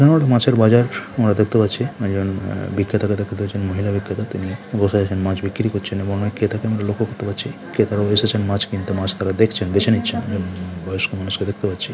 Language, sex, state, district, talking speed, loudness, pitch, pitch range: Bengali, male, West Bengal, Jhargram, 210 wpm, -20 LUFS, 100 Hz, 100-110 Hz